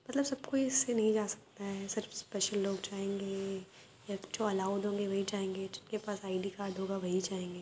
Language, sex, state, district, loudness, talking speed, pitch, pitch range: Hindi, female, Uttar Pradesh, Varanasi, -36 LUFS, 205 wpm, 200 Hz, 195-215 Hz